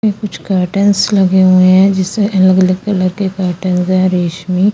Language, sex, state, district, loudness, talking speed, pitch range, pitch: Hindi, female, Chandigarh, Chandigarh, -12 LUFS, 175 wpm, 185-200 Hz, 185 Hz